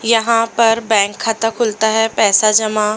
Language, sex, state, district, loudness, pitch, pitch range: Hindi, female, Delhi, New Delhi, -14 LUFS, 225 Hz, 215-225 Hz